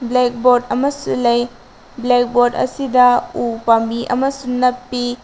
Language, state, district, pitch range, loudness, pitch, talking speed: Manipuri, Manipur, Imphal West, 240-250 Hz, -16 LUFS, 245 Hz, 125 wpm